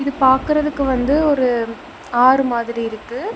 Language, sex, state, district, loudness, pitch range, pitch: Tamil, female, Tamil Nadu, Namakkal, -17 LUFS, 240-285 Hz, 260 Hz